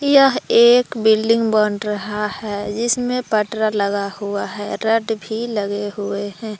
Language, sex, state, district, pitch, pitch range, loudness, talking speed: Hindi, female, Jharkhand, Palamu, 215 Hz, 205-230 Hz, -18 LUFS, 145 wpm